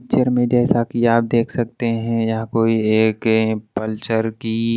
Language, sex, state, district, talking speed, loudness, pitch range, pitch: Hindi, male, Maharashtra, Washim, 175 wpm, -19 LUFS, 110-120 Hz, 115 Hz